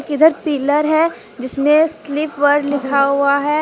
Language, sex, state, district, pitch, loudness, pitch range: Hindi, female, Jharkhand, Deoghar, 290 Hz, -16 LUFS, 280-305 Hz